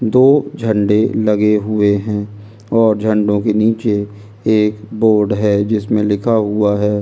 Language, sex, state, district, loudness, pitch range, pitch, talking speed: Hindi, male, Delhi, New Delhi, -15 LUFS, 105-110 Hz, 105 Hz, 155 wpm